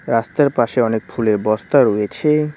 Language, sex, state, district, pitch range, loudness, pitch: Bengali, male, West Bengal, Cooch Behar, 110-140 Hz, -17 LUFS, 115 Hz